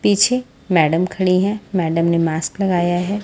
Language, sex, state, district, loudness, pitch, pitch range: Hindi, female, Maharashtra, Washim, -18 LUFS, 185 Hz, 170-200 Hz